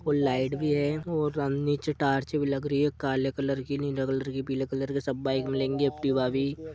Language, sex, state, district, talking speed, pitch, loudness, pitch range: Hindi, male, Jharkhand, Sahebganj, 220 wpm, 140 Hz, -28 LUFS, 135-145 Hz